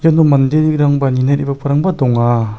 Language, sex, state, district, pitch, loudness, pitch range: Garo, male, Meghalaya, South Garo Hills, 140 Hz, -13 LUFS, 130-155 Hz